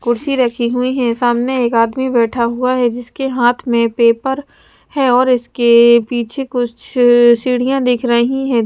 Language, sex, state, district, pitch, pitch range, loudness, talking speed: Hindi, female, Punjab, Pathankot, 245 Hz, 235-255 Hz, -14 LUFS, 175 wpm